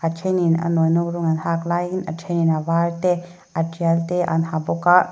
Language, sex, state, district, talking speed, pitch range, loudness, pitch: Mizo, female, Mizoram, Aizawl, 225 wpm, 165-175 Hz, -21 LUFS, 170 Hz